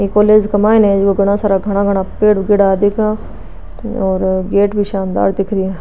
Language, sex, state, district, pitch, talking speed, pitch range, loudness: Marwari, female, Rajasthan, Nagaur, 200 Hz, 195 wpm, 195-210 Hz, -13 LUFS